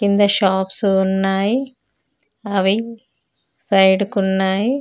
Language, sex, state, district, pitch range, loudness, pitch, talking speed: Telugu, female, Telangana, Mahabubabad, 190-205 Hz, -17 LUFS, 195 Hz, 75 wpm